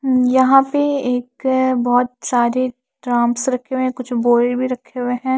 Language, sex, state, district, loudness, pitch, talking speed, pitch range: Hindi, female, Maharashtra, Washim, -17 LUFS, 255 Hz, 165 wpm, 245-260 Hz